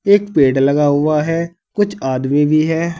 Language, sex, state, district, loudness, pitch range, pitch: Hindi, male, Uttar Pradesh, Saharanpur, -15 LUFS, 145-170 Hz, 155 Hz